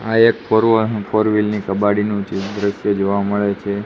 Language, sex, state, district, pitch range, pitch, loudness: Gujarati, male, Gujarat, Gandhinagar, 100-110 Hz, 105 Hz, -17 LUFS